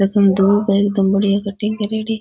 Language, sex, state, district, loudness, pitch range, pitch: Rajasthani, female, Rajasthan, Nagaur, -16 LUFS, 195-210 Hz, 200 Hz